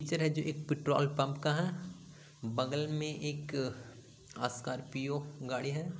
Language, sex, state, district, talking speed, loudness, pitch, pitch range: Hindi, male, Bihar, Gaya, 160 wpm, -36 LUFS, 145 Hz, 130-150 Hz